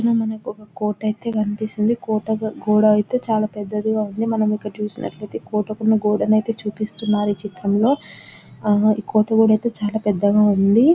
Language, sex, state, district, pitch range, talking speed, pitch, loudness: Telugu, female, Telangana, Nalgonda, 210-220 Hz, 130 wpm, 215 Hz, -20 LUFS